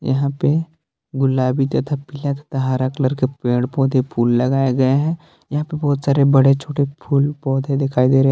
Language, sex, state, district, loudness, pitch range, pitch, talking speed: Hindi, male, Jharkhand, Palamu, -18 LUFS, 130-145 Hz, 135 Hz, 195 wpm